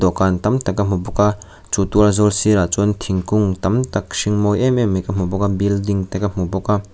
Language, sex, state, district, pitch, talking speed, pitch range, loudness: Mizo, male, Mizoram, Aizawl, 100 Hz, 240 wpm, 95-105 Hz, -18 LUFS